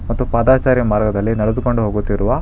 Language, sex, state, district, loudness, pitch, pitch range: Kannada, male, Karnataka, Bangalore, -16 LUFS, 115 Hz, 105-125 Hz